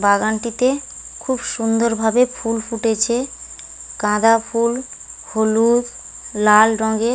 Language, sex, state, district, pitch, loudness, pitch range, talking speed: Bengali, female, West Bengal, Paschim Medinipur, 225 Hz, -18 LUFS, 220-240 Hz, 90 wpm